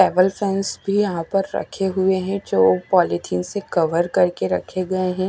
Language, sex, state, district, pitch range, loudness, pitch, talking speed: Hindi, female, Odisha, Nuapada, 165-195 Hz, -20 LUFS, 185 Hz, 180 wpm